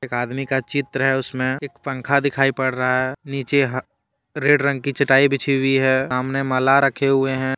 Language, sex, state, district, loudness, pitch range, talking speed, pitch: Hindi, male, Jharkhand, Deoghar, -19 LUFS, 130-140 Hz, 205 wpm, 135 Hz